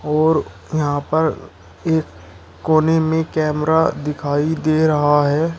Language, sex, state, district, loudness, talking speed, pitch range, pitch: Hindi, male, Uttar Pradesh, Shamli, -18 LUFS, 120 wpm, 145-160 Hz, 150 Hz